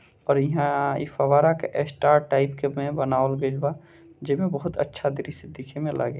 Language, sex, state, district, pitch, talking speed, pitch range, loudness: Bhojpuri, male, Bihar, Gopalganj, 140 Hz, 195 wpm, 140-150 Hz, -24 LUFS